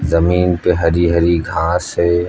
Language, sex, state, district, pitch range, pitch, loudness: Hindi, male, Uttar Pradesh, Lucknow, 85-90 Hz, 85 Hz, -15 LUFS